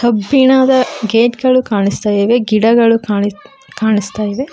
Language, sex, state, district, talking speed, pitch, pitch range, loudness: Kannada, female, Karnataka, Koppal, 105 wpm, 230 Hz, 210-255 Hz, -13 LUFS